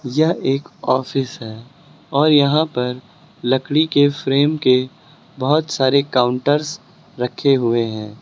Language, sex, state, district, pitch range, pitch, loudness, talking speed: Hindi, male, Uttar Pradesh, Lucknow, 125-150 Hz, 135 Hz, -18 LUFS, 125 wpm